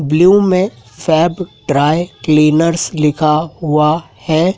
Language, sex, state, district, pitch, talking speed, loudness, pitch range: Hindi, male, Madhya Pradesh, Dhar, 160 Hz, 105 wpm, -13 LUFS, 150-175 Hz